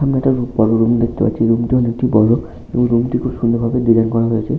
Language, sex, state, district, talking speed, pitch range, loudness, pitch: Bengali, male, West Bengal, Malda, 220 wpm, 115-125 Hz, -15 LUFS, 115 Hz